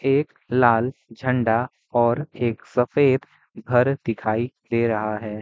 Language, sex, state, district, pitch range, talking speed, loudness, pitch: Hindi, male, Bihar, Sitamarhi, 115-130 Hz, 120 wpm, -22 LUFS, 120 Hz